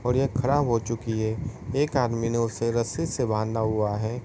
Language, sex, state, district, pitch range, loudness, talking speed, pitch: Hindi, male, Uttar Pradesh, Varanasi, 110-130 Hz, -26 LUFS, 200 wpm, 115 Hz